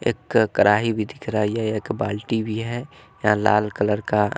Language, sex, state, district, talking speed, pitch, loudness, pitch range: Hindi, male, Bihar, West Champaran, 205 wpm, 110 Hz, -22 LUFS, 105-115 Hz